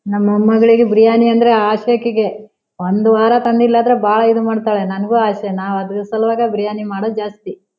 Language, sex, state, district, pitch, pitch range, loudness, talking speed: Kannada, female, Karnataka, Shimoga, 220 Hz, 210-230 Hz, -14 LUFS, 160 wpm